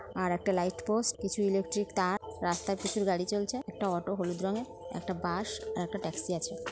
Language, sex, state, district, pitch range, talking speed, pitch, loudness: Bengali, female, West Bengal, North 24 Parganas, 185-210 Hz, 180 wpm, 195 Hz, -33 LUFS